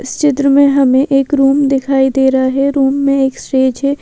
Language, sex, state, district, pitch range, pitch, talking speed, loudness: Hindi, female, Madhya Pradesh, Bhopal, 265-280 Hz, 275 Hz, 225 wpm, -12 LUFS